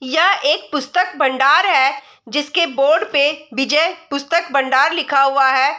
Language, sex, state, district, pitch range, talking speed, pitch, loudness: Hindi, female, Bihar, Saharsa, 270-325 Hz, 145 wpm, 285 Hz, -16 LUFS